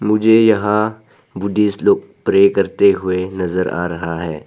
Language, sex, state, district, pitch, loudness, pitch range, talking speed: Hindi, male, Arunachal Pradesh, Papum Pare, 100 Hz, -16 LUFS, 90-105 Hz, 145 wpm